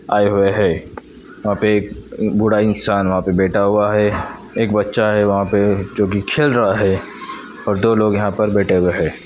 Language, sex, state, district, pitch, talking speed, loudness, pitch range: Hindi, male, Maharashtra, Washim, 105 Hz, 200 wpm, -16 LUFS, 100-105 Hz